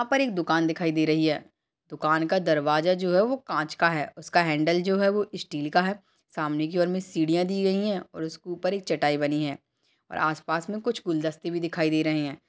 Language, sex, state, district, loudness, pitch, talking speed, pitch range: Hindi, female, Bihar, Jamui, -26 LUFS, 165 Hz, 240 wpm, 155-185 Hz